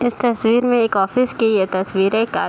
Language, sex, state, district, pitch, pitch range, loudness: Hindi, female, Bihar, Saharsa, 225 Hz, 195-240 Hz, -17 LUFS